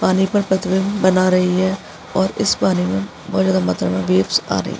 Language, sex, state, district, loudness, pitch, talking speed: Hindi, female, Uttar Pradesh, Jyotiba Phule Nagar, -18 LUFS, 180 Hz, 165 wpm